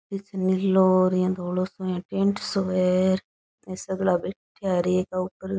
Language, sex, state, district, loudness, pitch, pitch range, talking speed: Rajasthani, female, Rajasthan, Churu, -24 LUFS, 185 Hz, 185-190 Hz, 195 wpm